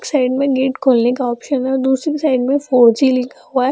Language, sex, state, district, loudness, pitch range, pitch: Hindi, female, Bihar, Gaya, -15 LUFS, 255-270 Hz, 265 Hz